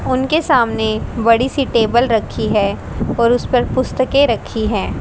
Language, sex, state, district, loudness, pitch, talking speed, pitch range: Hindi, female, Haryana, Rohtak, -16 LUFS, 235 Hz, 155 wpm, 225-260 Hz